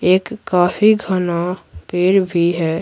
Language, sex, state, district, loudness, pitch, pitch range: Hindi, female, Bihar, Patna, -17 LUFS, 180 Hz, 170-190 Hz